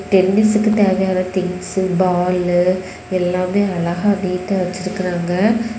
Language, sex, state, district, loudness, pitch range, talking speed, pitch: Tamil, female, Tamil Nadu, Kanyakumari, -17 LUFS, 180-195 Hz, 85 wpm, 185 Hz